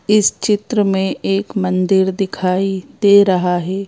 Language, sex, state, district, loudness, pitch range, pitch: Hindi, female, Madhya Pradesh, Bhopal, -16 LUFS, 185-200 Hz, 195 Hz